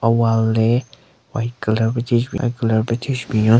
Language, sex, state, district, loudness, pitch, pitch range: Rengma, male, Nagaland, Kohima, -19 LUFS, 115 Hz, 110-120 Hz